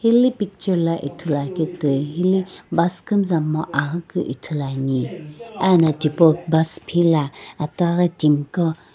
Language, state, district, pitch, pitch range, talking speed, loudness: Sumi, Nagaland, Dimapur, 165 Hz, 150-180 Hz, 135 wpm, -20 LUFS